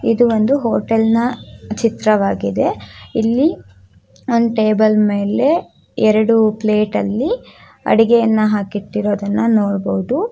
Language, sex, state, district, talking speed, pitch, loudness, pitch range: Kannada, female, Karnataka, Shimoga, 85 wpm, 215 Hz, -16 LUFS, 210-230 Hz